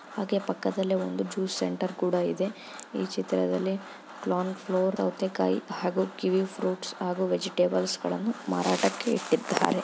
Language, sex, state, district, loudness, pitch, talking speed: Kannada, female, Karnataka, Chamarajanagar, -29 LUFS, 185 Hz, 115 wpm